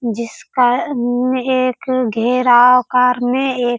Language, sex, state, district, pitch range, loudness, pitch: Hindi, female, Bihar, Purnia, 240-255 Hz, -15 LUFS, 250 Hz